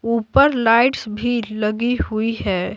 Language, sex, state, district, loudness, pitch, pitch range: Hindi, female, Bihar, Patna, -18 LUFS, 230 Hz, 215-240 Hz